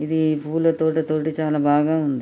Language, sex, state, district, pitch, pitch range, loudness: Telugu, male, Telangana, Nalgonda, 155 Hz, 150-160 Hz, -21 LUFS